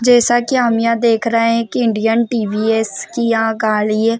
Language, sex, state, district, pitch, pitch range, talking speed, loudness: Hindi, female, Maharashtra, Chandrapur, 230 Hz, 220-235 Hz, 200 wpm, -15 LUFS